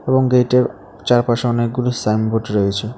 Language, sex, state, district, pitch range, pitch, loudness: Bengali, male, Tripura, South Tripura, 105-125 Hz, 120 Hz, -17 LUFS